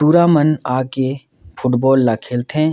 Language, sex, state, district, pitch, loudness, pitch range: Surgujia, male, Chhattisgarh, Sarguja, 130 Hz, -16 LUFS, 125-150 Hz